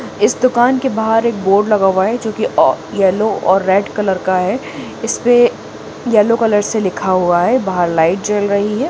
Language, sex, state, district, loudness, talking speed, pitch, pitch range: Hindi, female, Jharkhand, Jamtara, -14 LUFS, 200 wpm, 205 Hz, 190-230 Hz